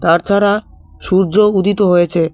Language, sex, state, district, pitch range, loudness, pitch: Bengali, male, West Bengal, Cooch Behar, 165-205 Hz, -13 LUFS, 190 Hz